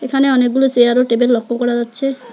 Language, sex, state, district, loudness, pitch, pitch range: Bengali, female, West Bengal, Alipurduar, -14 LUFS, 245 Hz, 240-265 Hz